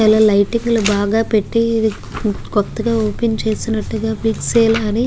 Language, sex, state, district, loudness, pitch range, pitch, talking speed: Telugu, female, Andhra Pradesh, Guntur, -17 LUFS, 215-230 Hz, 220 Hz, 140 wpm